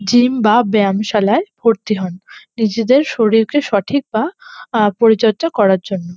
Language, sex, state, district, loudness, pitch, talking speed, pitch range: Bengali, female, West Bengal, North 24 Parganas, -15 LUFS, 220 Hz, 125 wpm, 205-245 Hz